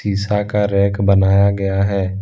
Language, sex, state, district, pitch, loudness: Hindi, male, Jharkhand, Deoghar, 100 Hz, -16 LUFS